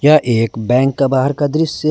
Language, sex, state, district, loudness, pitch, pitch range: Hindi, male, Jharkhand, Garhwa, -15 LUFS, 135 Hz, 125-150 Hz